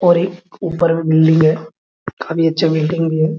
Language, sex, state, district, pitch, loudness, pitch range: Hindi, male, Bihar, Araria, 165 Hz, -15 LUFS, 160-170 Hz